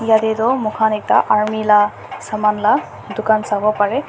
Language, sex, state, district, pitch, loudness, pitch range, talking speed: Nagamese, male, Nagaland, Dimapur, 215 Hz, -16 LUFS, 210-220 Hz, 160 wpm